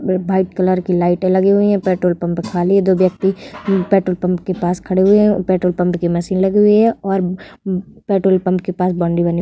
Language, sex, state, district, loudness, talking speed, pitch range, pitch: Hindi, female, Bihar, Vaishali, -16 LUFS, 235 wpm, 180-195 Hz, 185 Hz